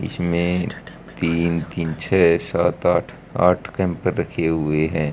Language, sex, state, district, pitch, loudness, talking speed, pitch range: Hindi, male, Haryana, Rohtak, 85 Hz, -21 LUFS, 130 wpm, 80-90 Hz